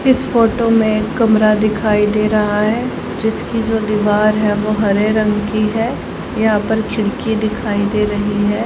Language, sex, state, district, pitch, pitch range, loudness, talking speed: Hindi, female, Haryana, Charkhi Dadri, 215 Hz, 210-220 Hz, -15 LUFS, 165 wpm